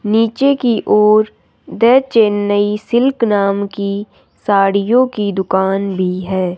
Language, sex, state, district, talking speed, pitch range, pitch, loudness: Hindi, male, Rajasthan, Jaipur, 120 wpm, 200-230 Hz, 205 Hz, -14 LUFS